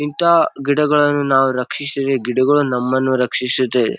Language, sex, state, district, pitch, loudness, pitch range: Kannada, male, Karnataka, Bijapur, 135 Hz, -16 LUFS, 125-145 Hz